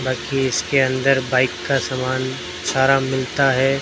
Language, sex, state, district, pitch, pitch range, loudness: Hindi, male, Rajasthan, Bikaner, 130 Hz, 130-135 Hz, -19 LUFS